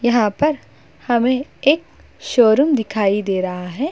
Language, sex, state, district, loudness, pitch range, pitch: Hindi, female, Uttar Pradesh, Budaun, -18 LUFS, 205-280 Hz, 240 Hz